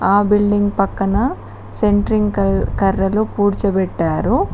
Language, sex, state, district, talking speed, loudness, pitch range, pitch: Telugu, female, Telangana, Mahabubabad, 80 wpm, -17 LUFS, 195-210 Hz, 205 Hz